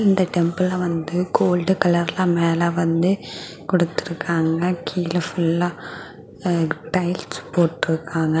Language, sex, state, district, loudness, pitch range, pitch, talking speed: Tamil, female, Tamil Nadu, Kanyakumari, -21 LUFS, 165-180 Hz, 170 Hz, 100 wpm